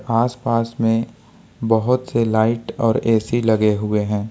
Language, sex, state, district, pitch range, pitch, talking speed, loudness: Hindi, male, Jharkhand, Ranchi, 110-115 Hz, 115 Hz, 140 wpm, -19 LUFS